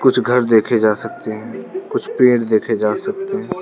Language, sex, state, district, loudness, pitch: Hindi, male, Arunachal Pradesh, Lower Dibang Valley, -17 LUFS, 125 Hz